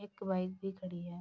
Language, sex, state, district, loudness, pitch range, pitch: Hindi, female, Bihar, Bhagalpur, -39 LUFS, 180-195 Hz, 185 Hz